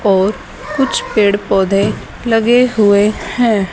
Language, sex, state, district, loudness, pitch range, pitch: Hindi, female, Haryana, Charkhi Dadri, -14 LUFS, 200-235 Hz, 210 Hz